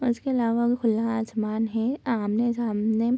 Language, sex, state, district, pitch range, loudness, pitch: Hindi, female, Bihar, Bhagalpur, 220-240 Hz, -25 LUFS, 230 Hz